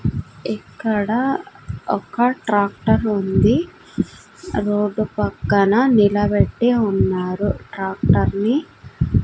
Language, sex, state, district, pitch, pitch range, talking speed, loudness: Telugu, female, Andhra Pradesh, Sri Satya Sai, 210 Hz, 205-240 Hz, 70 wpm, -19 LUFS